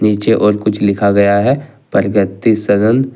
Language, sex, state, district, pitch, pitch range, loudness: Hindi, male, Jharkhand, Ranchi, 105 Hz, 100-115 Hz, -13 LUFS